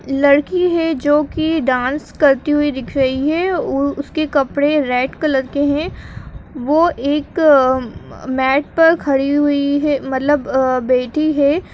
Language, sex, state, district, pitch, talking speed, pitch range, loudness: Hindi, female, Uttarakhand, Uttarkashi, 285 Hz, 145 wpm, 270-305 Hz, -16 LUFS